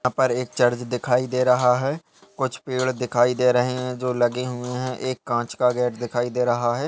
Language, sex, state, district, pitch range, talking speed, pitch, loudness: Hindi, male, Uttar Pradesh, Budaun, 125-130 Hz, 225 wpm, 125 Hz, -23 LUFS